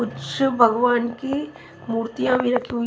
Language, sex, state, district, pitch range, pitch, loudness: Hindi, female, Himachal Pradesh, Shimla, 235-265 Hz, 245 Hz, -21 LUFS